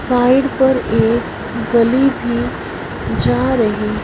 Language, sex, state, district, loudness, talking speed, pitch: Hindi, female, Punjab, Fazilka, -16 LUFS, 105 wpm, 235 Hz